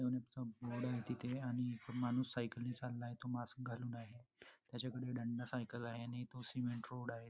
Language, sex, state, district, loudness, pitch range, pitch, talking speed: Marathi, male, Maharashtra, Nagpur, -45 LUFS, 120-125 Hz, 125 Hz, 155 wpm